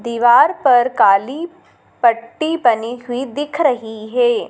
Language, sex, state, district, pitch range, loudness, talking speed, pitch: Hindi, female, Madhya Pradesh, Dhar, 235-310 Hz, -16 LUFS, 120 wpm, 250 Hz